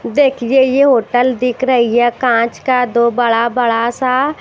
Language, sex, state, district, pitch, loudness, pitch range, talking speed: Hindi, female, Chhattisgarh, Raipur, 245 Hz, -13 LUFS, 235-260 Hz, 165 wpm